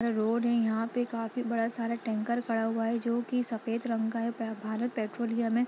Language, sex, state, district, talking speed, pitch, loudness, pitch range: Hindi, female, Bihar, Lakhisarai, 220 wpm, 230 Hz, -31 LUFS, 225-235 Hz